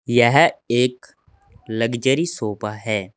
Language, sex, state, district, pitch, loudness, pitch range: Hindi, male, Uttar Pradesh, Saharanpur, 115 Hz, -19 LUFS, 105-125 Hz